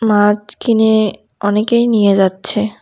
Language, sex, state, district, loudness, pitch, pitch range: Bengali, female, West Bengal, Cooch Behar, -13 LUFS, 210 Hz, 205-220 Hz